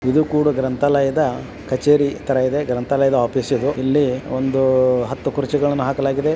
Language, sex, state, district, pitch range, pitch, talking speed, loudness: Kannada, male, Karnataka, Belgaum, 130-145 Hz, 135 Hz, 115 wpm, -18 LUFS